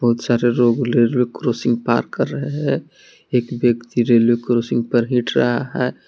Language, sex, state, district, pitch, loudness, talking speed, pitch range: Hindi, male, Jharkhand, Palamu, 120 Hz, -18 LUFS, 170 wpm, 120-125 Hz